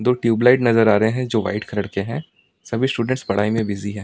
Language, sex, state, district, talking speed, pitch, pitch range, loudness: Hindi, male, Delhi, New Delhi, 250 wpm, 115 Hz, 105-125 Hz, -19 LUFS